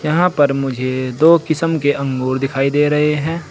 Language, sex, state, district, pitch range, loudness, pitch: Hindi, male, Uttar Pradesh, Saharanpur, 135-160 Hz, -16 LUFS, 145 Hz